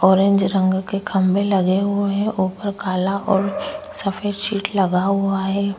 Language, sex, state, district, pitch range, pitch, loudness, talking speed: Hindi, female, Goa, North and South Goa, 190-200 Hz, 195 Hz, -20 LUFS, 155 wpm